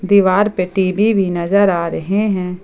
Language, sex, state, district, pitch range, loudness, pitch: Hindi, female, Jharkhand, Ranchi, 180-200 Hz, -15 LUFS, 190 Hz